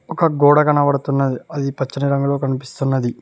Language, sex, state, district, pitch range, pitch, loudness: Telugu, male, Telangana, Mahabubabad, 135-145 Hz, 140 Hz, -18 LUFS